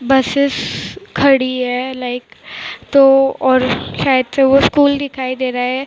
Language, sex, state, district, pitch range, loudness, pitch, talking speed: Hindi, female, Maharashtra, Mumbai Suburban, 255-275 Hz, -14 LUFS, 260 Hz, 145 wpm